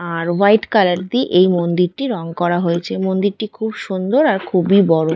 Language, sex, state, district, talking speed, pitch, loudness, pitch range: Bengali, female, West Bengal, Dakshin Dinajpur, 175 wpm, 185 Hz, -16 LUFS, 175-215 Hz